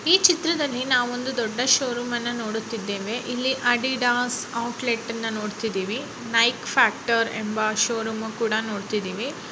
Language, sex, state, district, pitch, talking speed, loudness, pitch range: Kannada, female, Karnataka, Mysore, 235 Hz, 145 wpm, -23 LUFS, 220-250 Hz